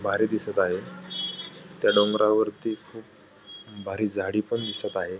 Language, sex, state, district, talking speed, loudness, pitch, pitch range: Marathi, male, Maharashtra, Pune, 125 wpm, -26 LUFS, 110 Hz, 105-120 Hz